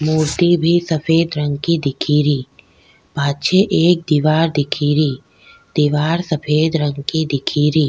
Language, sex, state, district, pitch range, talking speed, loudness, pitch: Rajasthani, female, Rajasthan, Nagaur, 145-160 Hz, 130 wpm, -16 LUFS, 150 Hz